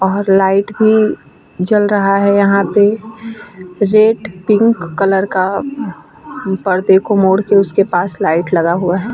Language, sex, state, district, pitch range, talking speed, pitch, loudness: Hindi, female, Bihar, Vaishali, 190-210 Hz, 145 wpm, 200 Hz, -13 LUFS